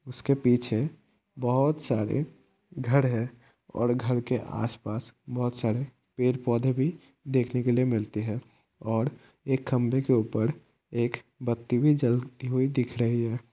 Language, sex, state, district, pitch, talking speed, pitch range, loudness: Hindi, male, Bihar, Kishanganj, 125 Hz, 140 wpm, 120-130 Hz, -28 LUFS